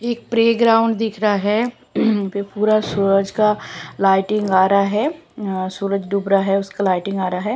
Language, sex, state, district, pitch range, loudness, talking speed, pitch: Hindi, female, Punjab, Kapurthala, 195-220 Hz, -18 LUFS, 175 wpm, 200 Hz